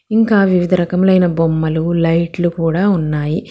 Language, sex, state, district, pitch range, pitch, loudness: Telugu, female, Telangana, Hyderabad, 165-185 Hz, 170 Hz, -14 LUFS